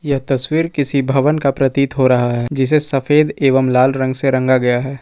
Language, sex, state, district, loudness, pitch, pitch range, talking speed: Hindi, male, Jharkhand, Ranchi, -15 LUFS, 135 Hz, 130-145 Hz, 215 wpm